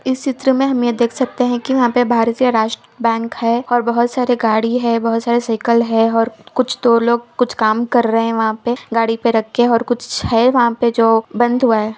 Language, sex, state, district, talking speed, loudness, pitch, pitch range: Hindi, female, Uttar Pradesh, Ghazipur, 240 wpm, -16 LUFS, 235 Hz, 230-245 Hz